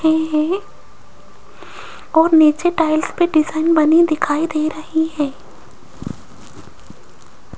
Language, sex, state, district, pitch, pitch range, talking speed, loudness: Hindi, female, Rajasthan, Jaipur, 315 Hz, 310-325 Hz, 95 wpm, -16 LUFS